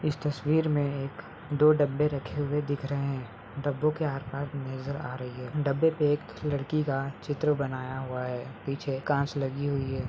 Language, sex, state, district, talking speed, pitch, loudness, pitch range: Hindi, male, Bihar, Bhagalpur, 190 wpm, 140 Hz, -30 LUFS, 135-150 Hz